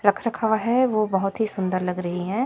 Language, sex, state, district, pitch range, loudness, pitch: Hindi, female, Chhattisgarh, Raipur, 185-225 Hz, -23 LUFS, 200 Hz